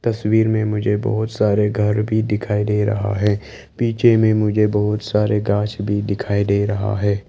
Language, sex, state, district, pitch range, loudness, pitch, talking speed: Hindi, male, Arunachal Pradesh, Lower Dibang Valley, 105-110 Hz, -18 LUFS, 105 Hz, 180 wpm